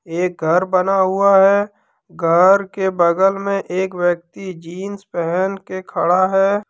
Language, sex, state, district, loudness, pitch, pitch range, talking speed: Hindi, male, Jharkhand, Deoghar, -17 LUFS, 190 Hz, 175-195 Hz, 145 wpm